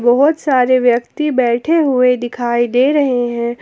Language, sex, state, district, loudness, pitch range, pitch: Hindi, female, Jharkhand, Palamu, -14 LUFS, 240-275 Hz, 250 Hz